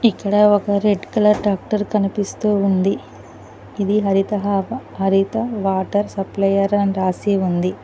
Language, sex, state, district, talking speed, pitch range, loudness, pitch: Telugu, female, Telangana, Mahabubabad, 115 wpm, 195-210 Hz, -18 LUFS, 200 Hz